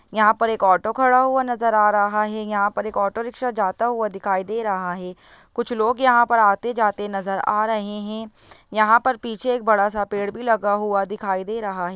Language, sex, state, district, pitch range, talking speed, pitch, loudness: Hindi, female, Bihar, Begusarai, 200-230 Hz, 215 wpm, 215 Hz, -20 LUFS